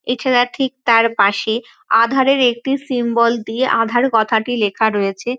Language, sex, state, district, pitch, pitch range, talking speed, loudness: Bengali, female, West Bengal, North 24 Parganas, 235 Hz, 225-250 Hz, 135 wpm, -16 LUFS